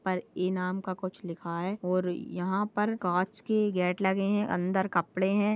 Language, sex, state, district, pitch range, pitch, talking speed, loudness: Hindi, female, Goa, North and South Goa, 180-200 Hz, 185 Hz, 185 wpm, -30 LUFS